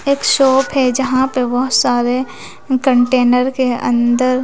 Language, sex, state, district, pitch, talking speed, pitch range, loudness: Hindi, female, Bihar, West Champaran, 255 Hz, 135 wpm, 245-265 Hz, -14 LUFS